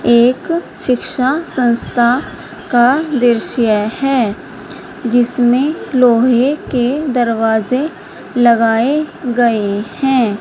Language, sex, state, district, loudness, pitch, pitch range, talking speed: Hindi, female, Bihar, Purnia, -14 LUFS, 245 Hz, 235-265 Hz, 75 wpm